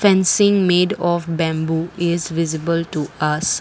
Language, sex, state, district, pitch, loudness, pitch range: English, female, Assam, Kamrup Metropolitan, 170 Hz, -18 LUFS, 160-180 Hz